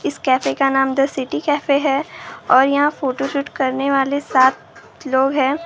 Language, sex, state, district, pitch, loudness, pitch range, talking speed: Hindi, female, Maharashtra, Gondia, 275 Hz, -17 LUFS, 265-280 Hz, 180 wpm